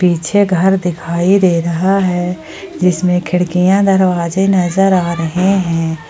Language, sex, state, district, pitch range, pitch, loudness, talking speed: Hindi, female, Jharkhand, Ranchi, 170-190 Hz, 180 Hz, -13 LUFS, 130 wpm